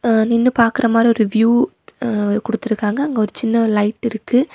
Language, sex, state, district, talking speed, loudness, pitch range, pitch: Tamil, female, Tamil Nadu, Nilgiris, 170 wpm, -17 LUFS, 220-235 Hz, 230 Hz